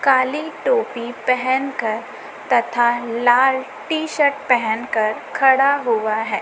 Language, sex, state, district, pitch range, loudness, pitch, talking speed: Hindi, female, Chhattisgarh, Raipur, 235-275 Hz, -19 LUFS, 255 Hz, 120 wpm